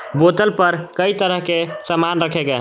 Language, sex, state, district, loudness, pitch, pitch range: Hindi, male, Jharkhand, Garhwa, -17 LUFS, 170 Hz, 165-180 Hz